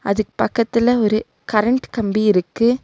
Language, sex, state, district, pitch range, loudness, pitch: Tamil, female, Tamil Nadu, Nilgiris, 210-235 Hz, -18 LUFS, 220 Hz